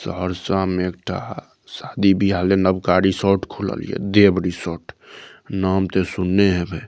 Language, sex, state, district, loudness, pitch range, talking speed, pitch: Maithili, male, Bihar, Saharsa, -19 LUFS, 90-95 Hz, 120 wpm, 95 Hz